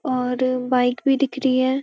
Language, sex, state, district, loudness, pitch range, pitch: Hindi, female, Uttarakhand, Uttarkashi, -20 LUFS, 250-270 Hz, 255 Hz